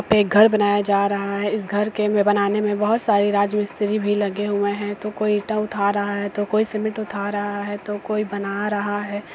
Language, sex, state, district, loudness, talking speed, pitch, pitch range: Hindi, female, Bihar, Sitamarhi, -21 LUFS, 230 wpm, 205 Hz, 205-210 Hz